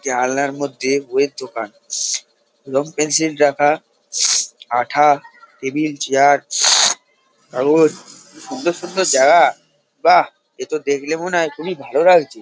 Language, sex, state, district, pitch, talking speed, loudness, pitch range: Bengali, male, West Bengal, North 24 Parganas, 145 Hz, 105 wpm, -16 LUFS, 135-160 Hz